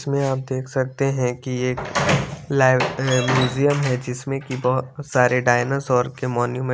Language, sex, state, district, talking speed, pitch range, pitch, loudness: Hindi, male, Chandigarh, Chandigarh, 160 wpm, 125-135 Hz, 130 Hz, -21 LUFS